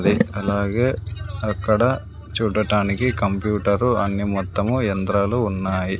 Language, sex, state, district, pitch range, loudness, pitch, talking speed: Telugu, male, Andhra Pradesh, Sri Satya Sai, 100-110 Hz, -21 LUFS, 100 Hz, 90 wpm